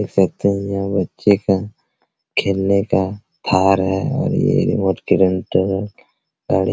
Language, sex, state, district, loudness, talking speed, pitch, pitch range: Hindi, male, Bihar, Araria, -18 LUFS, 160 wpm, 95 Hz, 95-100 Hz